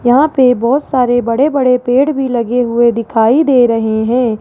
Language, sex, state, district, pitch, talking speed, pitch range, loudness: Hindi, female, Rajasthan, Jaipur, 245 Hz, 175 wpm, 235-260 Hz, -12 LUFS